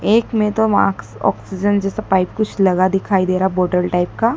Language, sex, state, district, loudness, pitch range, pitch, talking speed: Hindi, female, Madhya Pradesh, Dhar, -17 LUFS, 180-210 Hz, 190 Hz, 220 wpm